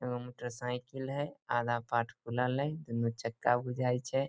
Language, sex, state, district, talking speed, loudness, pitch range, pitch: Maithili, male, Bihar, Samastipur, 170 wpm, -35 LUFS, 120-130 Hz, 125 Hz